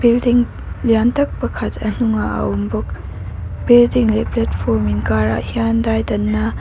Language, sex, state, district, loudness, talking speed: Mizo, female, Mizoram, Aizawl, -17 LUFS, 135 wpm